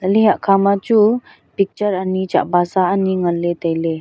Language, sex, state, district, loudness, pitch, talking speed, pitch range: Wancho, female, Arunachal Pradesh, Longding, -17 LUFS, 190 Hz, 165 wpm, 175-200 Hz